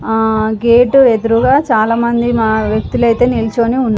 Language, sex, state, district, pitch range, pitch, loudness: Telugu, female, Telangana, Karimnagar, 220-240 Hz, 230 Hz, -12 LUFS